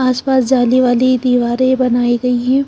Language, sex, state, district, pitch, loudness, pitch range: Hindi, female, Punjab, Kapurthala, 255 Hz, -13 LUFS, 245-255 Hz